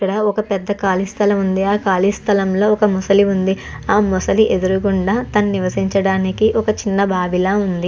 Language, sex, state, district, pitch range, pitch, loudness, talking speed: Telugu, female, Andhra Pradesh, Chittoor, 190-205 Hz, 195 Hz, -16 LUFS, 150 wpm